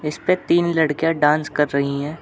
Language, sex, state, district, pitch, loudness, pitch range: Hindi, male, Uttar Pradesh, Jyotiba Phule Nagar, 150 Hz, -19 LUFS, 150-165 Hz